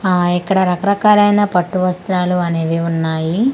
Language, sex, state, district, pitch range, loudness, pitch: Telugu, female, Andhra Pradesh, Manyam, 170-200 Hz, -15 LUFS, 180 Hz